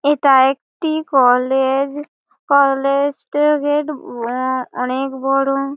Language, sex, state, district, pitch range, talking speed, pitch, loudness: Bengali, female, West Bengal, Malda, 265-290 Hz, 85 wpm, 275 Hz, -17 LUFS